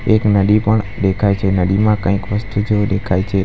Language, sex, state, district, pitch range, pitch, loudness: Gujarati, male, Gujarat, Valsad, 100-105 Hz, 100 Hz, -16 LUFS